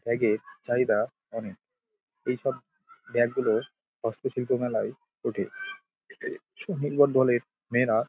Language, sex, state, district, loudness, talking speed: Bengali, male, West Bengal, Dakshin Dinajpur, -28 LUFS, 105 wpm